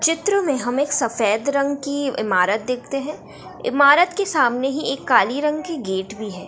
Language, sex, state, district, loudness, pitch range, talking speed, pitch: Hindi, female, Bihar, Gaya, -20 LUFS, 235-295 Hz, 195 wpm, 275 Hz